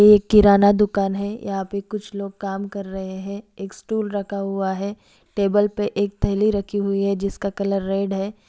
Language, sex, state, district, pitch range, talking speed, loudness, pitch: Hindi, female, Bihar, East Champaran, 195-205 Hz, 210 wpm, -21 LUFS, 200 Hz